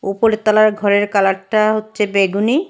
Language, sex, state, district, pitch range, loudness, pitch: Bengali, female, Assam, Hailakandi, 200-215 Hz, -15 LUFS, 210 Hz